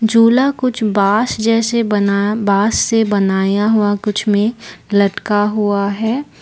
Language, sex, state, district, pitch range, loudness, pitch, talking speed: Hindi, female, Assam, Kamrup Metropolitan, 205-225 Hz, -15 LUFS, 210 Hz, 130 wpm